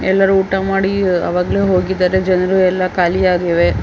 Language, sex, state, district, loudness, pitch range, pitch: Kannada, female, Karnataka, Chamarajanagar, -15 LUFS, 180-190 Hz, 185 Hz